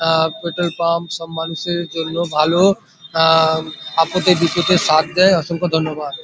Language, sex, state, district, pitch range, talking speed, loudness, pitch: Bengali, male, West Bengal, Paschim Medinipur, 160-175 Hz, 145 wpm, -17 LUFS, 165 Hz